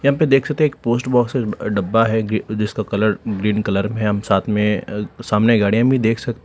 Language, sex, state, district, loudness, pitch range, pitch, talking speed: Hindi, male, Telangana, Hyderabad, -18 LUFS, 105-120 Hz, 110 Hz, 215 wpm